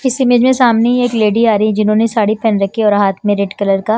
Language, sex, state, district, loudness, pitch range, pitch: Hindi, female, Himachal Pradesh, Shimla, -13 LUFS, 210-240 Hz, 220 Hz